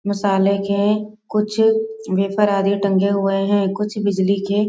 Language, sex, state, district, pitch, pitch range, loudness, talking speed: Hindi, female, Bihar, East Champaran, 200 Hz, 195-210 Hz, -19 LUFS, 155 wpm